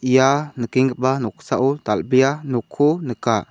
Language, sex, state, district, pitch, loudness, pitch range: Garo, male, Meghalaya, South Garo Hills, 130 Hz, -19 LUFS, 125-140 Hz